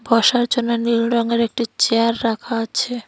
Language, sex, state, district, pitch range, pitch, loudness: Bengali, female, West Bengal, Cooch Behar, 230-240 Hz, 235 Hz, -18 LUFS